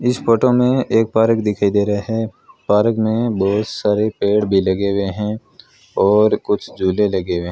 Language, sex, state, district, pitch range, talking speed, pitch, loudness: Hindi, male, Rajasthan, Bikaner, 100-115 Hz, 190 wpm, 105 Hz, -17 LUFS